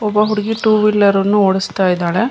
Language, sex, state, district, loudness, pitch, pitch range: Kannada, female, Karnataka, Mysore, -14 LUFS, 210 Hz, 195-215 Hz